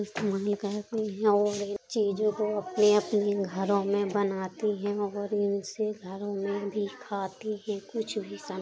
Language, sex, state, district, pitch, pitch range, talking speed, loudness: Bundeli, female, Uttar Pradesh, Jalaun, 205 Hz, 200-210 Hz, 160 wpm, -29 LUFS